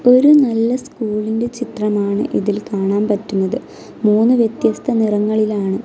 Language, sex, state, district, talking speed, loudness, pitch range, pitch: Malayalam, female, Kerala, Kasaragod, 105 wpm, -16 LUFS, 205-240 Hz, 215 Hz